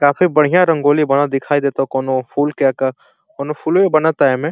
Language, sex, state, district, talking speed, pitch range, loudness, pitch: Bhojpuri, male, Uttar Pradesh, Deoria, 185 wpm, 135-155 Hz, -15 LUFS, 145 Hz